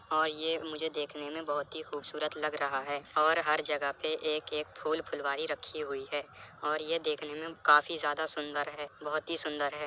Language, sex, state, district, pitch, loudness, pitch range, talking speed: Hindi, male, Uttar Pradesh, Jyotiba Phule Nagar, 150 Hz, -33 LUFS, 150-160 Hz, 205 wpm